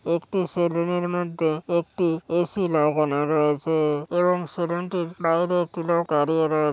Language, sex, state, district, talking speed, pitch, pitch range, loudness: Bengali, female, West Bengal, Paschim Medinipur, 145 wpm, 170 Hz, 155-175 Hz, -23 LUFS